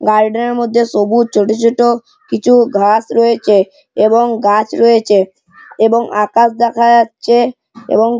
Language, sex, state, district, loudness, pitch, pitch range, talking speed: Bengali, male, West Bengal, Malda, -12 LUFS, 230 Hz, 215-235 Hz, 125 wpm